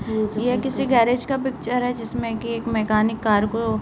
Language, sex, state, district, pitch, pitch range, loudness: Hindi, female, Uttarakhand, Tehri Garhwal, 230 Hz, 220-245 Hz, -22 LUFS